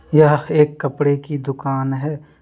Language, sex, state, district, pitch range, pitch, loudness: Hindi, male, Jharkhand, Deoghar, 140-150 Hz, 145 Hz, -18 LUFS